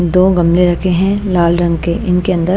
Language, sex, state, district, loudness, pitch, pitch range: Hindi, female, Bihar, Patna, -13 LUFS, 180 Hz, 175-185 Hz